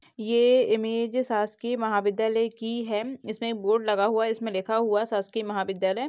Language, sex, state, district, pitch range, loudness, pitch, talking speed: Hindi, female, Chhattisgarh, Bastar, 210-230 Hz, -26 LUFS, 225 Hz, 180 wpm